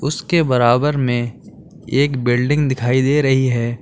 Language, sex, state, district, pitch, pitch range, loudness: Hindi, male, Uttar Pradesh, Lalitpur, 130 Hz, 120-145 Hz, -17 LUFS